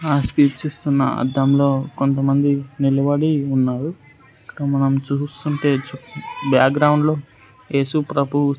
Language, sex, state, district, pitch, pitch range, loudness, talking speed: Telugu, male, Andhra Pradesh, Sri Satya Sai, 140 Hz, 135-145 Hz, -19 LUFS, 100 wpm